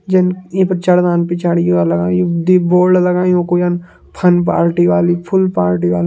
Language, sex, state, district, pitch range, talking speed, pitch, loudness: Kumaoni, male, Uttarakhand, Tehri Garhwal, 170-180 Hz, 200 wpm, 175 Hz, -13 LUFS